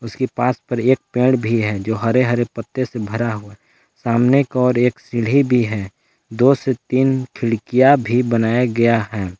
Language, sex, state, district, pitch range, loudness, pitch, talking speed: Hindi, male, Jharkhand, Palamu, 115-130 Hz, -17 LUFS, 120 Hz, 185 wpm